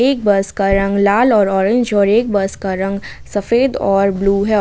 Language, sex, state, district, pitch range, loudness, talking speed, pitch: Hindi, female, Jharkhand, Ranchi, 195-215 Hz, -15 LUFS, 210 wpm, 200 Hz